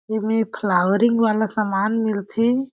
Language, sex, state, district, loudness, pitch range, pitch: Chhattisgarhi, female, Chhattisgarh, Jashpur, -20 LUFS, 205-225 Hz, 220 Hz